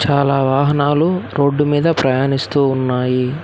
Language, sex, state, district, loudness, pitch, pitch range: Telugu, male, Telangana, Hyderabad, -16 LUFS, 140 Hz, 135-145 Hz